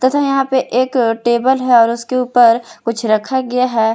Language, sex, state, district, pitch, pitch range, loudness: Hindi, female, Jharkhand, Palamu, 250 Hz, 230-260 Hz, -14 LUFS